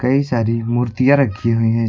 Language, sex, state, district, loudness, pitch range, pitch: Hindi, male, Uttar Pradesh, Lucknow, -17 LUFS, 115-130 Hz, 115 Hz